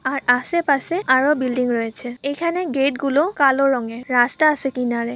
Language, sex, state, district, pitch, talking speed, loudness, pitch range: Bengali, female, West Bengal, Purulia, 270 Hz, 150 wpm, -19 LUFS, 245-295 Hz